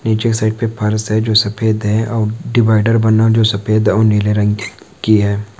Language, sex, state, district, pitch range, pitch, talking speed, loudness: Hindi, male, Uttarakhand, Uttarkashi, 105-110 Hz, 110 Hz, 215 wpm, -14 LUFS